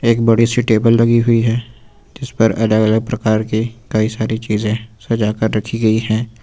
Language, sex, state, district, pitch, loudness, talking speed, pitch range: Hindi, male, Uttar Pradesh, Lucknow, 110 Hz, -16 LUFS, 195 wpm, 110-115 Hz